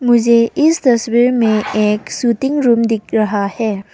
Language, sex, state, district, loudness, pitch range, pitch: Hindi, female, Arunachal Pradesh, Papum Pare, -14 LUFS, 215-245 Hz, 230 Hz